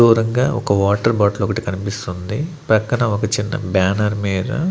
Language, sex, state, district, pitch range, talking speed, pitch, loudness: Telugu, male, Andhra Pradesh, Annamaya, 100-115 Hz, 155 wpm, 105 Hz, -18 LUFS